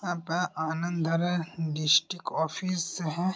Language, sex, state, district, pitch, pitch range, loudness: Hindi, male, Bihar, Bhagalpur, 170 Hz, 160-180 Hz, -29 LUFS